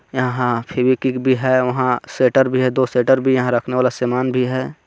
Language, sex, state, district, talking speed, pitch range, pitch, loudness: Hindi, male, Jharkhand, Garhwa, 210 wpm, 125-130 Hz, 130 Hz, -17 LUFS